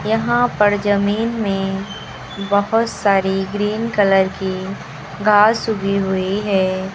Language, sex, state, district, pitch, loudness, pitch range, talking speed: Hindi, female, Uttar Pradesh, Lucknow, 200 Hz, -18 LUFS, 195-210 Hz, 110 wpm